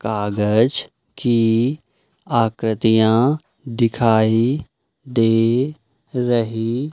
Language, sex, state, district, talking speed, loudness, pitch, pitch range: Hindi, male, Madhya Pradesh, Umaria, 50 wpm, -18 LUFS, 115 Hz, 110-130 Hz